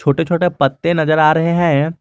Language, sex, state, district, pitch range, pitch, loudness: Hindi, male, Jharkhand, Garhwa, 145-170 Hz, 155 Hz, -15 LUFS